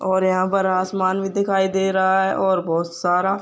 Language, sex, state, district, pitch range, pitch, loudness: Hindi, male, Uttar Pradesh, Jyotiba Phule Nagar, 185-195 Hz, 190 Hz, -20 LUFS